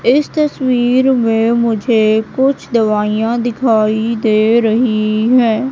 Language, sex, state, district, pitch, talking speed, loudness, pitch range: Hindi, female, Madhya Pradesh, Katni, 230 Hz, 105 wpm, -13 LUFS, 220-250 Hz